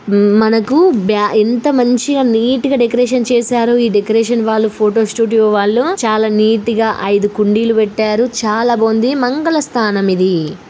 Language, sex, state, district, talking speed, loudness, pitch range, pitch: Telugu, female, Telangana, Karimnagar, 140 wpm, -13 LUFS, 215-245 Hz, 225 Hz